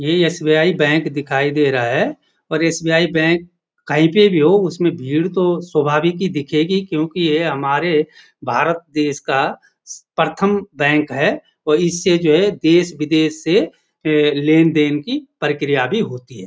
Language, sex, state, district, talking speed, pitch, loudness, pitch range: Hindi, male, Uttarakhand, Uttarkashi, 160 wpm, 160 Hz, -16 LUFS, 150-175 Hz